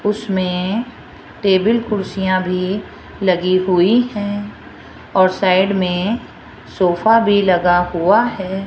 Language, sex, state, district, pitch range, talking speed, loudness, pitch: Hindi, female, Rajasthan, Jaipur, 185-205 Hz, 105 wpm, -16 LUFS, 190 Hz